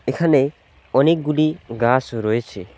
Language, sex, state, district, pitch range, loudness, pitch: Bengali, male, West Bengal, Alipurduar, 115-155 Hz, -19 LUFS, 130 Hz